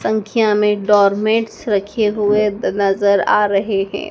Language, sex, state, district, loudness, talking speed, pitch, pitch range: Hindi, female, Madhya Pradesh, Dhar, -16 LUFS, 130 wpm, 210 Hz, 200-215 Hz